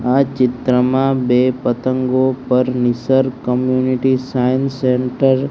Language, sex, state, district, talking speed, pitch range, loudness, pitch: Gujarati, male, Gujarat, Gandhinagar, 110 wpm, 125-130 Hz, -16 LUFS, 130 Hz